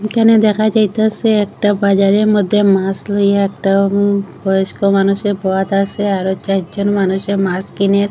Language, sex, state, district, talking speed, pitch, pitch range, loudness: Bengali, female, Assam, Hailakandi, 135 wpm, 200 Hz, 195-205 Hz, -14 LUFS